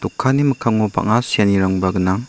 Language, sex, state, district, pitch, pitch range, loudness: Garo, male, Meghalaya, South Garo Hills, 105 Hz, 95-120 Hz, -17 LUFS